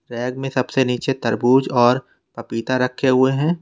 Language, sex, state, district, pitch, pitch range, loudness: Hindi, male, Uttar Pradesh, Lalitpur, 130 Hz, 120-135 Hz, -19 LUFS